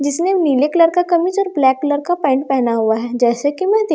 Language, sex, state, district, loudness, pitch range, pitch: Hindi, female, Bihar, Katihar, -16 LUFS, 265-355 Hz, 290 Hz